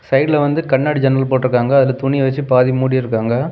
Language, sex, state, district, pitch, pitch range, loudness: Tamil, male, Tamil Nadu, Kanyakumari, 135 Hz, 130-140 Hz, -15 LUFS